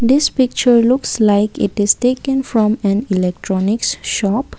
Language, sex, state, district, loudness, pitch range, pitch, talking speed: English, female, Assam, Kamrup Metropolitan, -15 LUFS, 205-255 Hz, 220 Hz, 145 wpm